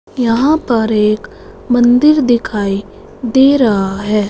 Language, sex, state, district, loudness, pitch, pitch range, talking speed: Hindi, female, Punjab, Fazilka, -13 LUFS, 230 Hz, 210-255 Hz, 110 wpm